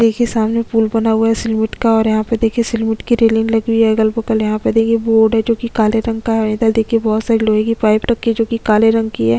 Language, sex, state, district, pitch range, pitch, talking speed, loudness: Hindi, female, Chhattisgarh, Sukma, 220-230 Hz, 225 Hz, 290 wpm, -15 LUFS